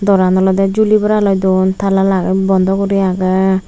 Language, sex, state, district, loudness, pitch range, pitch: Chakma, female, Tripura, Unakoti, -13 LUFS, 190-195 Hz, 190 Hz